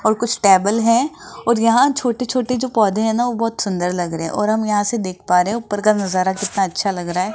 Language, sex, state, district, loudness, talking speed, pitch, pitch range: Hindi, female, Rajasthan, Jaipur, -18 LUFS, 280 wpm, 215 Hz, 190-235 Hz